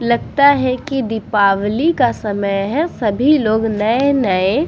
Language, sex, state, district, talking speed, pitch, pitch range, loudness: Hindi, female, Bihar, Vaishali, 140 wpm, 235 Hz, 205-275 Hz, -16 LUFS